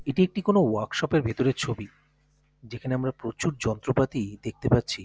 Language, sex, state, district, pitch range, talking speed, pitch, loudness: Bengali, male, West Bengal, North 24 Parganas, 115-150 Hz, 155 wpm, 130 Hz, -27 LUFS